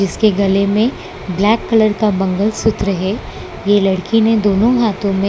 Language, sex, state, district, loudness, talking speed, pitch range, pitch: Hindi, female, Gujarat, Valsad, -15 LUFS, 160 wpm, 195-220 Hz, 205 Hz